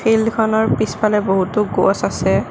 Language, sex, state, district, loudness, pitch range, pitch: Assamese, female, Assam, Kamrup Metropolitan, -17 LUFS, 210-220 Hz, 220 Hz